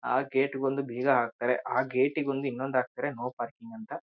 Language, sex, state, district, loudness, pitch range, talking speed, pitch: Kannada, male, Karnataka, Shimoga, -30 LUFS, 125-140 Hz, 180 wpm, 135 Hz